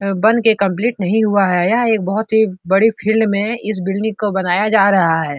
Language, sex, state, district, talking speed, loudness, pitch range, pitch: Hindi, female, Uttar Pradesh, Etah, 235 wpm, -15 LUFS, 195-220 Hz, 210 Hz